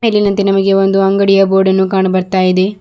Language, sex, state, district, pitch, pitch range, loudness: Kannada, female, Karnataka, Bidar, 195 Hz, 190-195 Hz, -11 LUFS